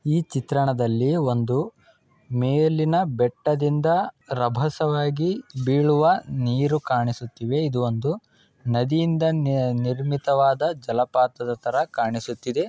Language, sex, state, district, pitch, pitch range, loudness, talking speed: Kannada, male, Karnataka, Dharwad, 135 Hz, 125-155 Hz, -23 LUFS, 85 wpm